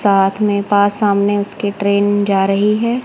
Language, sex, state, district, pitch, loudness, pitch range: Hindi, female, Punjab, Kapurthala, 205 Hz, -15 LUFS, 200-205 Hz